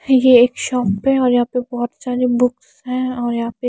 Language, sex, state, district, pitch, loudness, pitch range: Hindi, female, Himachal Pradesh, Shimla, 250 Hz, -17 LUFS, 240-255 Hz